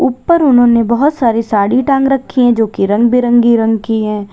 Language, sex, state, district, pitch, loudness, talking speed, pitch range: Hindi, female, Uttar Pradesh, Lalitpur, 235 Hz, -11 LUFS, 195 wpm, 225-255 Hz